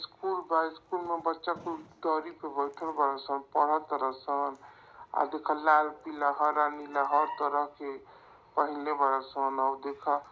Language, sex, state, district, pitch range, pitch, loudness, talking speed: Bhojpuri, male, Uttar Pradesh, Varanasi, 140-160 Hz, 150 Hz, -31 LUFS, 170 wpm